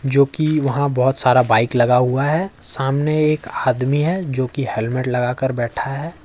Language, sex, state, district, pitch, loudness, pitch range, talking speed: Hindi, male, Jharkhand, Ranchi, 135 Hz, -18 LUFS, 125-145 Hz, 180 wpm